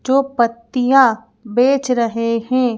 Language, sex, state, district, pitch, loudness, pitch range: Hindi, female, Madhya Pradesh, Bhopal, 245 Hz, -16 LUFS, 230-260 Hz